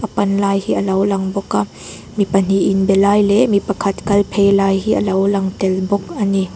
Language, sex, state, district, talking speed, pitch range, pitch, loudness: Mizo, female, Mizoram, Aizawl, 220 wpm, 195-200 Hz, 195 Hz, -16 LUFS